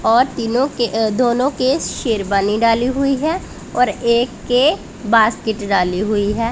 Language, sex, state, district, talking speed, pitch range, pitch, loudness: Hindi, female, Punjab, Pathankot, 155 wpm, 215-255 Hz, 235 Hz, -17 LUFS